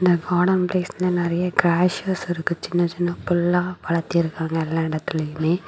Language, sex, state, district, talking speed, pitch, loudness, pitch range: Tamil, female, Tamil Nadu, Kanyakumari, 125 wpm, 175 Hz, -22 LUFS, 165-180 Hz